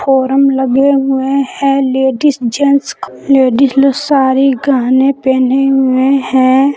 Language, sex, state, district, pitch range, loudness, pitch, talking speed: Hindi, female, Jharkhand, Palamu, 260-275 Hz, -11 LUFS, 270 Hz, 105 wpm